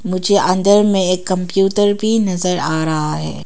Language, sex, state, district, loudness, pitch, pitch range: Hindi, female, Arunachal Pradesh, Papum Pare, -15 LUFS, 185 Hz, 180-205 Hz